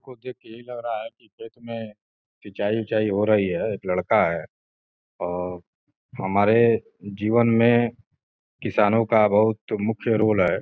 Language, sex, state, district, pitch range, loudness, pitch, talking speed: Hindi, male, Uttar Pradesh, Gorakhpur, 100-115 Hz, -22 LUFS, 110 Hz, 160 wpm